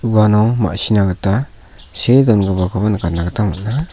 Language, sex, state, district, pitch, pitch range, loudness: Garo, male, Meghalaya, South Garo Hills, 105 Hz, 95-115 Hz, -15 LUFS